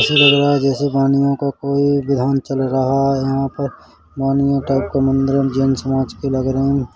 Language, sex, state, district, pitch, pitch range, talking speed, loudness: Hindi, male, Chhattisgarh, Rajnandgaon, 135 Hz, 135-140 Hz, 200 wpm, -17 LUFS